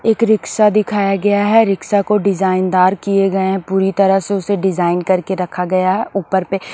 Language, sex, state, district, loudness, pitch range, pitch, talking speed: Hindi, female, Maharashtra, Washim, -15 LUFS, 185-205 Hz, 195 Hz, 205 wpm